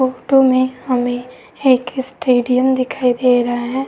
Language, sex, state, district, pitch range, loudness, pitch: Hindi, female, Uttar Pradesh, Etah, 245-260 Hz, -16 LUFS, 255 Hz